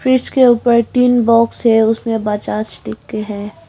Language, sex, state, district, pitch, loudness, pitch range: Hindi, female, Arunachal Pradesh, Longding, 230 Hz, -14 LUFS, 210-240 Hz